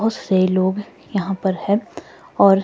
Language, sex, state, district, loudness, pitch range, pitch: Hindi, female, Himachal Pradesh, Shimla, -20 LUFS, 190-205 Hz, 195 Hz